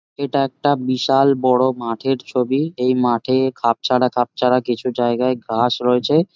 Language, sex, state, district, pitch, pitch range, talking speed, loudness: Bengali, male, West Bengal, Jhargram, 125 Hz, 125-135 Hz, 130 wpm, -18 LUFS